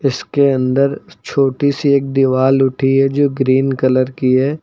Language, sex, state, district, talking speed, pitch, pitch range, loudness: Hindi, male, Uttar Pradesh, Lucknow, 170 wpm, 135 Hz, 130-140 Hz, -15 LUFS